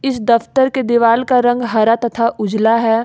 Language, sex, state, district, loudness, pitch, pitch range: Hindi, female, Jharkhand, Ranchi, -14 LUFS, 235 Hz, 230-245 Hz